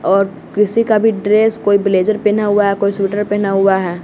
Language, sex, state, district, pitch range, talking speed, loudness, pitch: Hindi, male, Bihar, West Champaran, 195-210 Hz, 225 wpm, -14 LUFS, 205 Hz